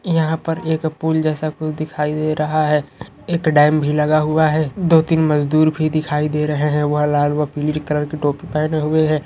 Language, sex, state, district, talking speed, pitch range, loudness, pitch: Hindi, male, Bihar, Gaya, 220 wpm, 150-155 Hz, -18 LUFS, 155 Hz